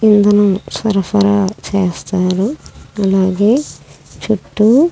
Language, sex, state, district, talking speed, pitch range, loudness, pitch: Telugu, female, Andhra Pradesh, Krishna, 60 wpm, 185-215 Hz, -14 LUFS, 200 Hz